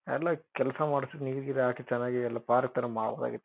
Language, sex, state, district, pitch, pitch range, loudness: Kannada, male, Karnataka, Chamarajanagar, 130 Hz, 120-140 Hz, -31 LUFS